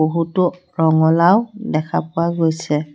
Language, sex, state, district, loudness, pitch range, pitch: Assamese, female, Assam, Sonitpur, -17 LUFS, 160-180 Hz, 165 Hz